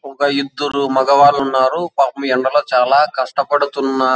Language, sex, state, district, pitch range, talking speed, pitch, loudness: Telugu, male, Andhra Pradesh, Anantapur, 130-145 Hz, 100 wpm, 140 Hz, -15 LUFS